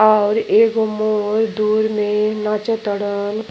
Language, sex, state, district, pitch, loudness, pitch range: Bhojpuri, female, Uttar Pradesh, Deoria, 215 Hz, -18 LUFS, 210-220 Hz